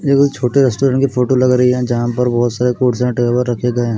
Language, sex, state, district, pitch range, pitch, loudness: Hindi, male, Odisha, Malkangiri, 120-130 Hz, 125 Hz, -15 LUFS